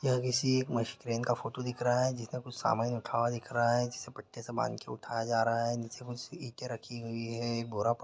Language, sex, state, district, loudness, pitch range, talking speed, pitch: Maithili, male, Bihar, Madhepura, -33 LUFS, 115-125 Hz, 255 wpm, 120 Hz